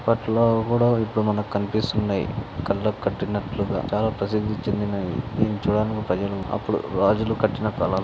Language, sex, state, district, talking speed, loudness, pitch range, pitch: Telugu, male, Telangana, Nalgonda, 140 wpm, -24 LUFS, 100-110 Hz, 105 Hz